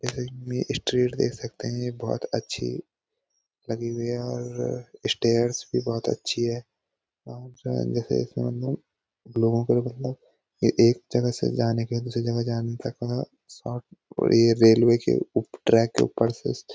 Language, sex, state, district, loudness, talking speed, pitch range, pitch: Hindi, male, Uttarakhand, Uttarkashi, -25 LUFS, 165 wpm, 115-120 Hz, 115 Hz